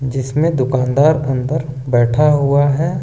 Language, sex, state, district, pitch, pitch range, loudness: Hindi, male, Jharkhand, Ranchi, 140 Hz, 130-150 Hz, -15 LUFS